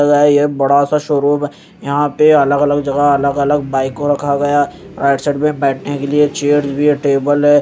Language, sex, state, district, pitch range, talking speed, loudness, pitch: Hindi, male, Chandigarh, Chandigarh, 140-145 Hz, 205 wpm, -14 LUFS, 145 Hz